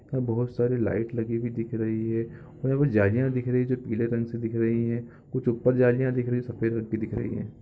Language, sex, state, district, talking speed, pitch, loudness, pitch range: Hindi, male, Chhattisgarh, Bilaspur, 260 wpm, 120 Hz, -27 LUFS, 115-125 Hz